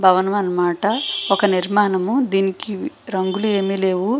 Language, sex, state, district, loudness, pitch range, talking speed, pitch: Telugu, female, Andhra Pradesh, Srikakulam, -19 LUFS, 185-210 Hz, 145 wpm, 195 Hz